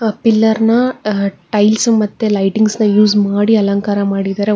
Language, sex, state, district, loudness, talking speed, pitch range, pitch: Kannada, female, Karnataka, Bangalore, -13 LUFS, 130 wpm, 200-220 Hz, 210 Hz